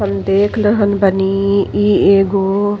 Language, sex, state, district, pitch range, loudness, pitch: Bhojpuri, female, Uttar Pradesh, Gorakhpur, 195-205 Hz, -14 LUFS, 200 Hz